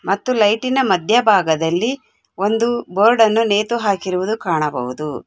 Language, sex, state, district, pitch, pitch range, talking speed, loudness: Kannada, female, Karnataka, Bangalore, 205 Hz, 180-230 Hz, 115 wpm, -17 LUFS